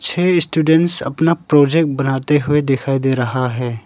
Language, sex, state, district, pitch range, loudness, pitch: Hindi, male, Arunachal Pradesh, Lower Dibang Valley, 135-160 Hz, -16 LUFS, 145 Hz